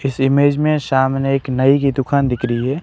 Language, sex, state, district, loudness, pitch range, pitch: Hindi, male, Rajasthan, Barmer, -16 LUFS, 130-140 Hz, 135 Hz